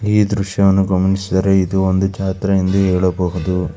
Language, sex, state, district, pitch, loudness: Kannada, male, Karnataka, Bangalore, 95 Hz, -16 LUFS